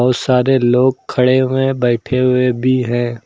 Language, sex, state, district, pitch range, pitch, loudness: Hindi, male, Uttar Pradesh, Lucknow, 125-130 Hz, 125 Hz, -14 LUFS